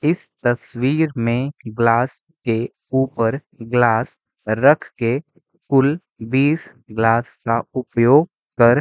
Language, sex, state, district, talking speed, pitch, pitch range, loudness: Hindi, male, Bihar, Sitamarhi, 110 wpm, 125 Hz, 115-145 Hz, -19 LUFS